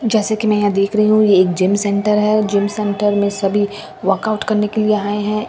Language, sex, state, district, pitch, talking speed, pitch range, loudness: Hindi, female, Bihar, Katihar, 210 Hz, 260 wpm, 200-215 Hz, -16 LUFS